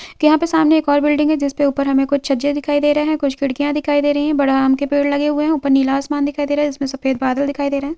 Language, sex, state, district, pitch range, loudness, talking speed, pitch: Hindi, female, Jharkhand, Jamtara, 275-295 Hz, -17 LUFS, 330 wpm, 285 Hz